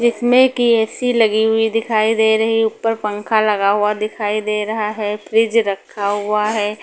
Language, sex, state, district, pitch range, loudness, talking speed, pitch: Hindi, female, Punjab, Pathankot, 210-225 Hz, -17 LUFS, 185 wpm, 220 Hz